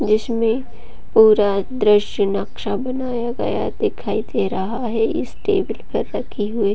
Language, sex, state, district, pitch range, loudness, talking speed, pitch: Hindi, female, Bihar, Gopalganj, 210-240 Hz, -20 LUFS, 140 wpm, 225 Hz